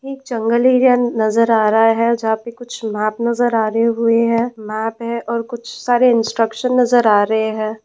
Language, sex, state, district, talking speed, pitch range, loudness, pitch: Hindi, female, West Bengal, Purulia, 200 wpm, 220-240 Hz, -16 LUFS, 230 Hz